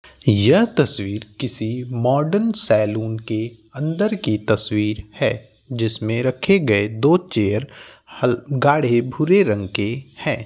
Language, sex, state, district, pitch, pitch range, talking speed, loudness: Bhojpuri, male, Uttar Pradesh, Gorakhpur, 120 Hz, 110-145 Hz, 120 wpm, -19 LUFS